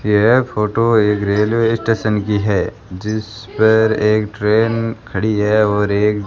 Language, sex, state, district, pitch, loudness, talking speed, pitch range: Hindi, male, Rajasthan, Bikaner, 105 Hz, -16 LUFS, 155 wpm, 105-110 Hz